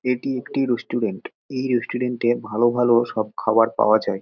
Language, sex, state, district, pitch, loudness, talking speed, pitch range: Bengali, male, West Bengal, Dakshin Dinajpur, 120 Hz, -21 LUFS, 200 wpm, 115-125 Hz